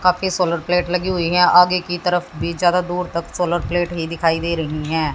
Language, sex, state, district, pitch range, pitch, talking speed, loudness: Hindi, female, Haryana, Jhajjar, 170-180 Hz, 175 Hz, 230 wpm, -19 LUFS